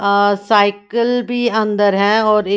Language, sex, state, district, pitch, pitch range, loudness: Hindi, female, Haryana, Jhajjar, 210 Hz, 205-225 Hz, -15 LUFS